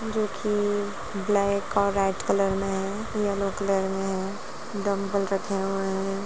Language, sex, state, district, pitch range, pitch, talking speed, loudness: Hindi, female, Bihar, Jamui, 195-205 Hz, 200 Hz, 165 wpm, -27 LUFS